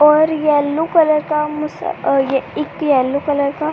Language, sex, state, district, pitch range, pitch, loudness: Hindi, female, Uttar Pradesh, Ghazipur, 285-305 Hz, 300 Hz, -16 LUFS